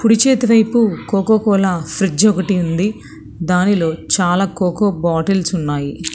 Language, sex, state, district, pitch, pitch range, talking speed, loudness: Telugu, female, Telangana, Hyderabad, 190 Hz, 170-210 Hz, 125 wpm, -15 LUFS